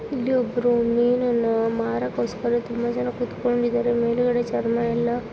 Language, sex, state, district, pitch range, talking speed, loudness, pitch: Kannada, female, Karnataka, Belgaum, 235-245 Hz, 110 wpm, -23 LUFS, 240 Hz